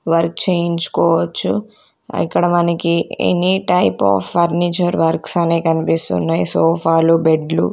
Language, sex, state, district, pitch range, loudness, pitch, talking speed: Telugu, female, Andhra Pradesh, Sri Satya Sai, 165-170 Hz, -16 LUFS, 165 Hz, 110 wpm